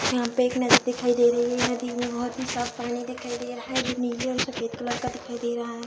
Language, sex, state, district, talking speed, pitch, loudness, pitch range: Hindi, female, Bihar, Saharsa, 285 wpm, 245 Hz, -26 LUFS, 240-250 Hz